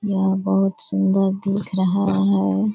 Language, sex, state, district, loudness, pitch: Hindi, female, Bihar, Purnia, -20 LUFS, 190 Hz